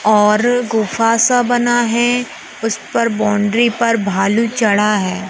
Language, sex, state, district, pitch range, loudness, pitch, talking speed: Hindi, female, Madhya Pradesh, Umaria, 210-240 Hz, -15 LUFS, 225 Hz, 135 wpm